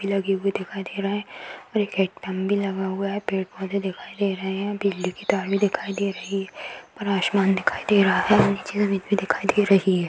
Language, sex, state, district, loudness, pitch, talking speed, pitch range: Hindi, female, Uttar Pradesh, Hamirpur, -24 LUFS, 195 Hz, 250 wpm, 190-200 Hz